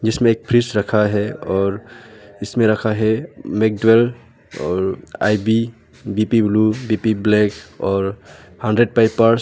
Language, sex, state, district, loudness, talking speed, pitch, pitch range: Hindi, male, Arunachal Pradesh, Lower Dibang Valley, -18 LUFS, 125 wpm, 110 Hz, 105-115 Hz